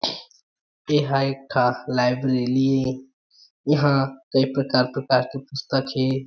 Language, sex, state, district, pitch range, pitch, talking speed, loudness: Chhattisgarhi, male, Chhattisgarh, Jashpur, 130-135 Hz, 135 Hz, 125 wpm, -22 LUFS